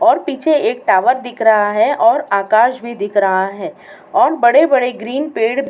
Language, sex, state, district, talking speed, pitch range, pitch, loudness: Hindi, female, Uttar Pradesh, Muzaffarnagar, 200 wpm, 215-295 Hz, 245 Hz, -14 LUFS